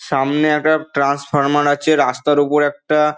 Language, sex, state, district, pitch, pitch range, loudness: Bengali, male, West Bengal, Dakshin Dinajpur, 145 Hz, 145-150 Hz, -16 LUFS